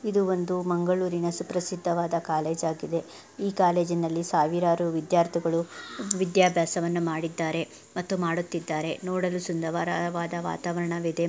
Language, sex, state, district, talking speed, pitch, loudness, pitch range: Kannada, female, Karnataka, Dakshina Kannada, 90 wpm, 170 Hz, -27 LUFS, 165-180 Hz